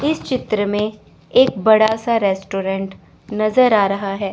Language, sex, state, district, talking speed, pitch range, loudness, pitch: Hindi, female, Chandigarh, Chandigarh, 150 wpm, 195-230 Hz, -17 LUFS, 210 Hz